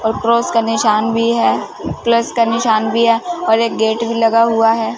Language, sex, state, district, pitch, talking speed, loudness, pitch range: Hindi, female, Punjab, Fazilka, 230 Hz, 215 wpm, -15 LUFS, 225-230 Hz